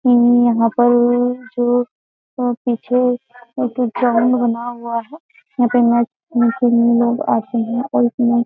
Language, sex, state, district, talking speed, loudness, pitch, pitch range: Hindi, female, Uttar Pradesh, Jyotiba Phule Nagar, 140 wpm, -16 LUFS, 240 Hz, 235-245 Hz